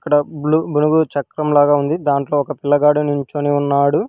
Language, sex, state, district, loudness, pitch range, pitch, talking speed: Telugu, male, Telangana, Hyderabad, -16 LUFS, 145-150 Hz, 145 Hz, 160 wpm